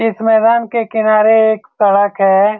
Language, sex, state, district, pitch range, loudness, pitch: Hindi, male, Bihar, Saran, 205-225 Hz, -12 LUFS, 220 Hz